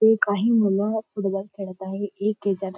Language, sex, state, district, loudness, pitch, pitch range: Marathi, female, Maharashtra, Nagpur, -24 LUFS, 200 Hz, 195-215 Hz